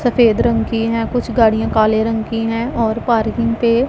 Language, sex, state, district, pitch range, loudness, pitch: Hindi, female, Punjab, Pathankot, 225-235 Hz, -16 LUFS, 230 Hz